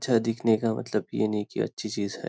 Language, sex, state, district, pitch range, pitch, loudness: Hindi, male, Maharashtra, Nagpur, 105-115 Hz, 110 Hz, -27 LUFS